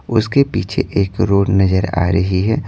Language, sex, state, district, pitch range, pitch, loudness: Hindi, male, Bihar, Patna, 95-110 Hz, 100 Hz, -16 LUFS